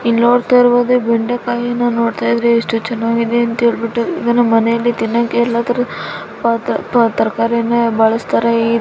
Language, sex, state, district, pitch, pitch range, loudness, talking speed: Kannada, female, Karnataka, Dharwad, 235 Hz, 230-240 Hz, -15 LUFS, 100 wpm